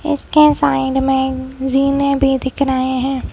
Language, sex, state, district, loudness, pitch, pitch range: Hindi, female, Madhya Pradesh, Bhopal, -15 LUFS, 270 Hz, 265-280 Hz